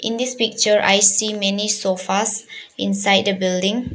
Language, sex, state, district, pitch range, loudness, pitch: English, female, Arunachal Pradesh, Papum Pare, 195-220 Hz, -17 LUFS, 205 Hz